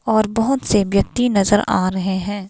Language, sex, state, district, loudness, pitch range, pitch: Hindi, female, Himachal Pradesh, Shimla, -18 LUFS, 195-220 Hz, 205 Hz